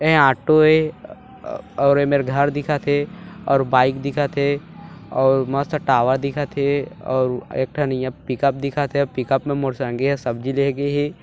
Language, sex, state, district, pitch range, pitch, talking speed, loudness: Hindi, male, Chhattisgarh, Bilaspur, 135-145 Hz, 140 Hz, 190 wpm, -20 LUFS